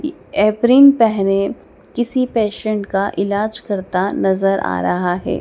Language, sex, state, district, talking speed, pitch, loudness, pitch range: Hindi, female, Madhya Pradesh, Dhar, 135 wpm, 205 Hz, -16 LUFS, 195-240 Hz